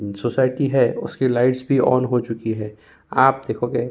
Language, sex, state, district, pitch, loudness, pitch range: Hindi, male, Uttar Pradesh, Jyotiba Phule Nagar, 125 Hz, -20 LUFS, 115-130 Hz